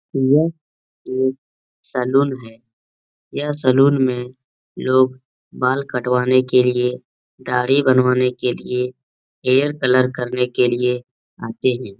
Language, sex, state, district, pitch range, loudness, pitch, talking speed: Hindi, male, Uttar Pradesh, Etah, 125-130 Hz, -18 LUFS, 125 Hz, 115 wpm